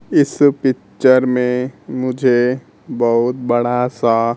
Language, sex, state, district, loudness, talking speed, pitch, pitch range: Hindi, male, Bihar, Kaimur, -16 LUFS, 95 wpm, 125 Hz, 120-130 Hz